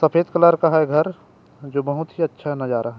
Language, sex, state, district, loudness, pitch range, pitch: Chhattisgarhi, male, Chhattisgarh, Rajnandgaon, -19 LUFS, 140-165 Hz, 155 Hz